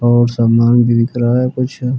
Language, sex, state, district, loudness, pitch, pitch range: Hindi, male, Uttar Pradesh, Jyotiba Phule Nagar, -13 LUFS, 120 Hz, 120-125 Hz